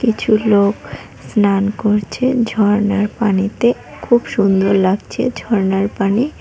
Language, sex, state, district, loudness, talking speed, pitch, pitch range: Bengali, female, West Bengal, Cooch Behar, -16 LUFS, 105 wpm, 205 Hz, 195-230 Hz